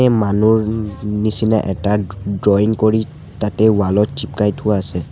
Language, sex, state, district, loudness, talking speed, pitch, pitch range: Assamese, male, Assam, Sonitpur, -17 LUFS, 140 wpm, 105 Hz, 100-110 Hz